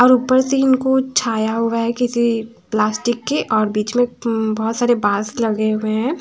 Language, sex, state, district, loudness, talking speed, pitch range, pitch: Hindi, female, Haryana, Charkhi Dadri, -18 LUFS, 195 wpm, 220-250 Hz, 230 Hz